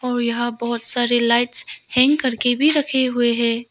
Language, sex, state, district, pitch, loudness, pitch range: Hindi, female, Arunachal Pradesh, Lower Dibang Valley, 240 Hz, -18 LUFS, 235-255 Hz